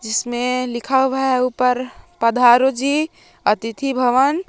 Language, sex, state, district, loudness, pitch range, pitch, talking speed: Hindi, female, Jharkhand, Palamu, -18 LUFS, 240-265 Hz, 250 Hz, 120 wpm